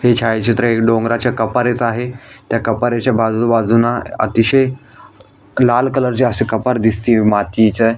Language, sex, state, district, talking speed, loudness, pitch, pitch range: Marathi, male, Maharashtra, Aurangabad, 145 wpm, -15 LUFS, 115 Hz, 110-125 Hz